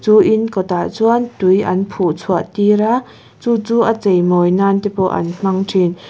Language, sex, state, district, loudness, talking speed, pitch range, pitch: Mizo, female, Mizoram, Aizawl, -15 LUFS, 205 wpm, 185-220 Hz, 195 Hz